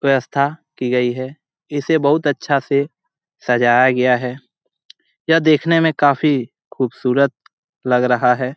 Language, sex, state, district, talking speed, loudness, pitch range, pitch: Hindi, male, Jharkhand, Jamtara, 135 wpm, -17 LUFS, 125-145 Hz, 140 Hz